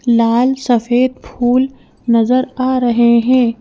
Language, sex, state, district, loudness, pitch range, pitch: Hindi, female, Madhya Pradesh, Bhopal, -14 LUFS, 235-255 Hz, 245 Hz